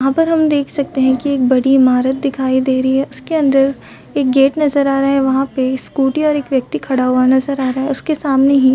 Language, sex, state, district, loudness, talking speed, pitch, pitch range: Hindi, female, Chhattisgarh, Raigarh, -14 LUFS, 245 wpm, 270 Hz, 260-280 Hz